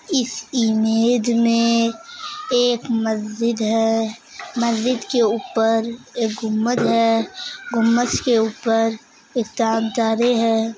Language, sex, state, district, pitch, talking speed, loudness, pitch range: Hindi, female, Bihar, Kishanganj, 230 Hz, 100 wpm, -19 LUFS, 225-245 Hz